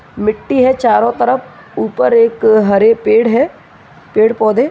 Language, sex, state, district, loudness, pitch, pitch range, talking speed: Hindi, male, Uttar Pradesh, Gorakhpur, -12 LUFS, 225 Hz, 215-245 Hz, 140 wpm